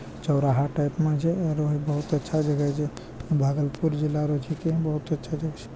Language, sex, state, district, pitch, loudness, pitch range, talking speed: Maithili, male, Bihar, Bhagalpur, 150 Hz, -26 LUFS, 145-155 Hz, 200 wpm